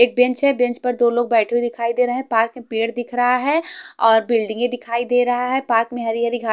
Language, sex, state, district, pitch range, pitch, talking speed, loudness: Hindi, female, Haryana, Jhajjar, 230-250 Hz, 240 Hz, 285 wpm, -19 LUFS